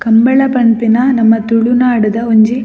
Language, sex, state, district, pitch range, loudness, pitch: Tulu, female, Karnataka, Dakshina Kannada, 225-250 Hz, -10 LUFS, 230 Hz